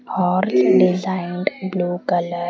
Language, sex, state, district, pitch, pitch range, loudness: English, female, Haryana, Rohtak, 180 Hz, 175-185 Hz, -19 LUFS